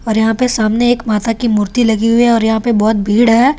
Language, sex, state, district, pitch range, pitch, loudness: Hindi, female, Delhi, New Delhi, 220-235 Hz, 225 Hz, -13 LUFS